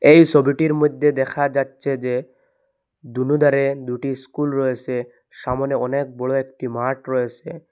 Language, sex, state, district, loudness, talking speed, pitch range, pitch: Bengali, male, Assam, Hailakandi, -20 LUFS, 130 wpm, 130-150 Hz, 135 Hz